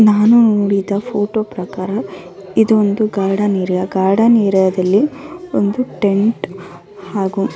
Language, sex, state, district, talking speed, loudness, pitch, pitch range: Kannada, female, Karnataka, Dharwad, 120 wpm, -15 LUFS, 200 Hz, 190-220 Hz